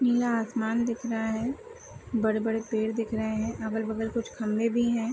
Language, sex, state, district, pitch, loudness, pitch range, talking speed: Hindi, female, Bihar, Sitamarhi, 225 Hz, -29 LUFS, 220-235 Hz, 185 wpm